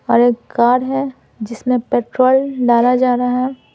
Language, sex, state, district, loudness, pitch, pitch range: Hindi, female, Bihar, Patna, -15 LUFS, 250 Hz, 240-255 Hz